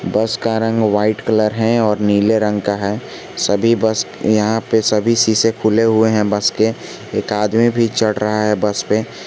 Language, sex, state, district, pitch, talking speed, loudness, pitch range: Hindi, male, Jharkhand, Garhwa, 110 Hz, 195 wpm, -16 LUFS, 105-115 Hz